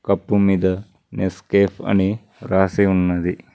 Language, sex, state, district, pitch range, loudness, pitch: Telugu, male, Telangana, Mahabubabad, 95-100 Hz, -19 LUFS, 95 Hz